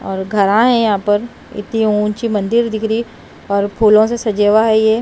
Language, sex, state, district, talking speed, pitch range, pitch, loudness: Hindi, female, Himachal Pradesh, Shimla, 190 wpm, 205-225 Hz, 215 Hz, -14 LUFS